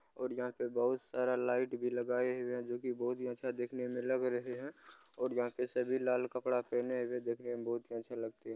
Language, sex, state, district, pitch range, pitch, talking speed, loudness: Maithili, male, Bihar, Begusarai, 120-125 Hz, 125 Hz, 245 wpm, -37 LUFS